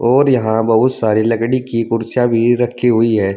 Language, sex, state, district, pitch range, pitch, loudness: Hindi, male, Uttar Pradesh, Saharanpur, 115-125 Hz, 115 Hz, -14 LUFS